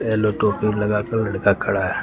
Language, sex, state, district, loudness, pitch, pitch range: Hindi, male, Uttar Pradesh, Lucknow, -20 LUFS, 105 Hz, 105-110 Hz